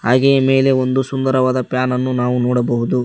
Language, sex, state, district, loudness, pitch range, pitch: Kannada, male, Karnataka, Koppal, -16 LUFS, 125-135 Hz, 130 Hz